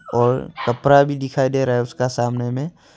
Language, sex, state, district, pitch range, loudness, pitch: Hindi, male, Arunachal Pradesh, Longding, 120-135 Hz, -19 LUFS, 125 Hz